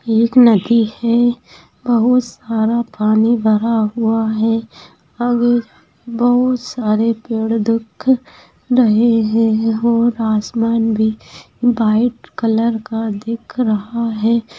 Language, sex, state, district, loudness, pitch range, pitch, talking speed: Hindi, female, Bihar, Sitamarhi, -16 LUFS, 220-240 Hz, 230 Hz, 110 wpm